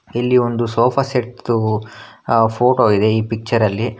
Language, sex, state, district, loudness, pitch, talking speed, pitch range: Kannada, male, Karnataka, Bangalore, -17 LUFS, 115 Hz, 165 wpm, 110-125 Hz